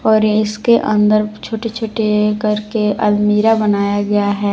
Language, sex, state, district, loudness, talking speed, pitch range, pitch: Hindi, female, Jharkhand, Palamu, -15 LUFS, 145 wpm, 210-220 Hz, 210 Hz